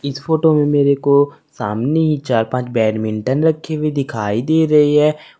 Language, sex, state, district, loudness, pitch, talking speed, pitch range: Hindi, male, Uttar Pradesh, Saharanpur, -16 LUFS, 140 Hz, 175 wpm, 120-155 Hz